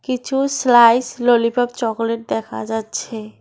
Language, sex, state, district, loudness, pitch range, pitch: Bengali, female, West Bengal, Cooch Behar, -17 LUFS, 225-245 Hz, 235 Hz